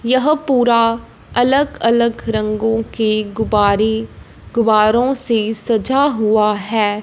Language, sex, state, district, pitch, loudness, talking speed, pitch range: Hindi, female, Punjab, Fazilka, 225 Hz, -15 LUFS, 100 wpm, 215-240 Hz